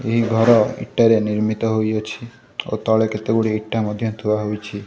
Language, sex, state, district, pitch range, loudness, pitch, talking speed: Odia, male, Odisha, Khordha, 105-115 Hz, -19 LUFS, 110 Hz, 150 wpm